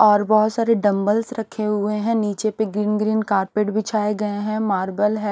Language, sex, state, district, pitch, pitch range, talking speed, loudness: Hindi, male, Odisha, Nuapada, 210 Hz, 205-215 Hz, 190 wpm, -20 LUFS